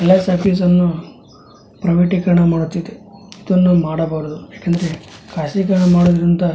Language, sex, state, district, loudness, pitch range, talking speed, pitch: Kannada, male, Karnataka, Dharwad, -15 LUFS, 165-185 Hz, 100 wpm, 175 Hz